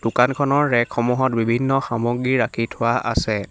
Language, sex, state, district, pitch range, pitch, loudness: Assamese, male, Assam, Hailakandi, 120-135 Hz, 125 Hz, -20 LUFS